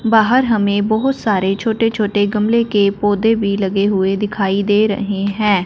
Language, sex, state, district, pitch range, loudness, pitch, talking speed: Hindi, female, Punjab, Fazilka, 200-220 Hz, -16 LUFS, 205 Hz, 170 wpm